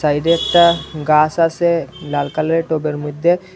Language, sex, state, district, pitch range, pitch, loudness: Bengali, male, Tripura, Unakoti, 150-170 Hz, 160 Hz, -16 LUFS